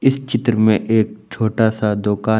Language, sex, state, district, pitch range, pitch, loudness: Hindi, male, Jharkhand, Palamu, 110-115 Hz, 110 Hz, -18 LUFS